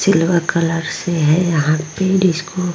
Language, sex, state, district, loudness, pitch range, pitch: Hindi, female, Bihar, Vaishali, -16 LUFS, 165-180 Hz, 170 Hz